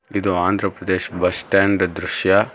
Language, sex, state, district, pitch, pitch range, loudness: Kannada, male, Karnataka, Bangalore, 95 Hz, 90-100 Hz, -19 LUFS